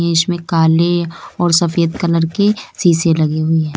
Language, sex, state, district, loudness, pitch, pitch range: Hindi, female, Uttar Pradesh, Lalitpur, -15 LUFS, 170 Hz, 160-175 Hz